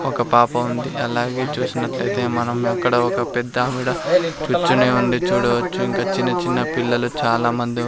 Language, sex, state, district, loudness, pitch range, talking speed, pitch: Telugu, male, Andhra Pradesh, Sri Satya Sai, -19 LUFS, 120-125 Hz, 160 wpm, 120 Hz